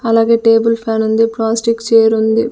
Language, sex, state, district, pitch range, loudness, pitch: Telugu, female, Andhra Pradesh, Sri Satya Sai, 225-230 Hz, -13 LUFS, 225 Hz